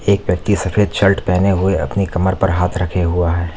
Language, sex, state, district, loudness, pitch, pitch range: Hindi, male, Uttar Pradesh, Lalitpur, -16 LUFS, 95 Hz, 90-100 Hz